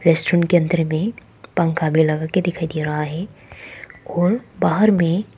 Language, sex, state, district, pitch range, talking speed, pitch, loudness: Hindi, female, Arunachal Pradesh, Papum Pare, 155-175 Hz, 165 wpm, 165 Hz, -19 LUFS